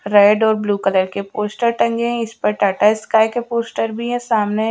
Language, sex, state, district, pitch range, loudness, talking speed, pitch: Hindi, female, Maharashtra, Gondia, 205-235 Hz, -17 LUFS, 215 wpm, 220 Hz